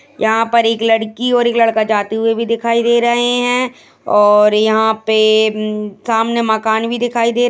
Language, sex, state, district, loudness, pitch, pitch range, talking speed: Hindi, female, Uttarakhand, Tehri Garhwal, -14 LUFS, 225 Hz, 220-235 Hz, 185 wpm